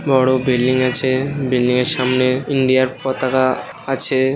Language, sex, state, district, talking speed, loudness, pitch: Bengali, male, West Bengal, North 24 Parganas, 165 wpm, -17 LUFS, 130 Hz